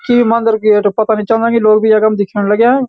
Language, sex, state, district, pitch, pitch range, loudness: Garhwali, male, Uttarakhand, Uttarkashi, 220 Hz, 215-230 Hz, -11 LUFS